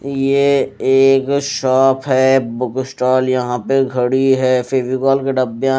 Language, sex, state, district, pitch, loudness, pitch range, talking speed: Hindi, male, Odisha, Malkangiri, 130 Hz, -15 LUFS, 130-135 Hz, 135 wpm